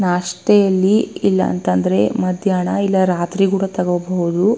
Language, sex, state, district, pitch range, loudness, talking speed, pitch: Kannada, female, Karnataka, Bellary, 170-195 Hz, -17 LUFS, 105 wpm, 180 Hz